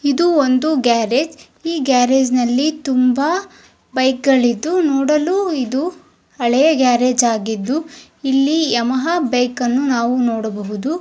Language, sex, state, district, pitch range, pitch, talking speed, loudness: Kannada, female, Karnataka, Dharwad, 245-305 Hz, 265 Hz, 110 wpm, -16 LUFS